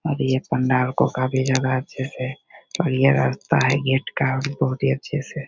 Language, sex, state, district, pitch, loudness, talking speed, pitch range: Hindi, male, Bihar, Begusarai, 130 Hz, -21 LUFS, 195 wpm, 130-135 Hz